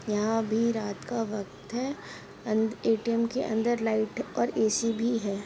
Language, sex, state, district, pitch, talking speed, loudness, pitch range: Hindi, female, Uttar Pradesh, Muzaffarnagar, 225 Hz, 155 wpm, -29 LUFS, 215-235 Hz